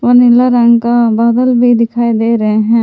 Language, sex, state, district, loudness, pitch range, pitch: Hindi, female, Jharkhand, Palamu, -10 LUFS, 230-245 Hz, 235 Hz